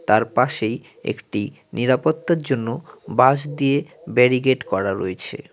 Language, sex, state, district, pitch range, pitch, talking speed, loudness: Bengali, male, West Bengal, Cooch Behar, 125-150 Hz, 130 Hz, 110 wpm, -21 LUFS